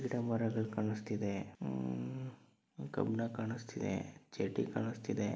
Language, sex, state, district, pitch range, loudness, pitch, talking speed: Kannada, male, Karnataka, Dharwad, 95-115 Hz, -39 LUFS, 110 Hz, 90 wpm